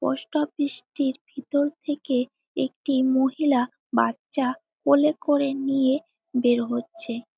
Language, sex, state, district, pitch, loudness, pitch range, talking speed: Bengali, female, West Bengal, Jalpaiguri, 275 Hz, -25 LUFS, 250-295 Hz, 105 wpm